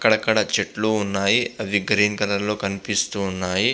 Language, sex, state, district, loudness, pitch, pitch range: Telugu, male, Andhra Pradesh, Visakhapatnam, -21 LUFS, 105 Hz, 100-110 Hz